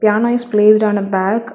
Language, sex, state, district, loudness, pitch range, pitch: English, female, Telangana, Hyderabad, -14 LUFS, 205-225 Hz, 215 Hz